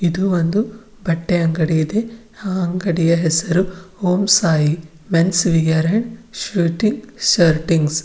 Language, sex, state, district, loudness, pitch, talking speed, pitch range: Kannada, female, Karnataka, Bidar, -18 LUFS, 180 Hz, 105 wpm, 165-210 Hz